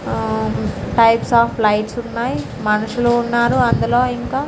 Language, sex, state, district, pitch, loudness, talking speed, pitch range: Telugu, female, Andhra Pradesh, Srikakulam, 235 Hz, -17 LUFS, 120 wpm, 210-240 Hz